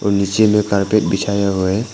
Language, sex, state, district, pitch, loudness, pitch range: Hindi, male, Arunachal Pradesh, Papum Pare, 100 Hz, -16 LUFS, 100-105 Hz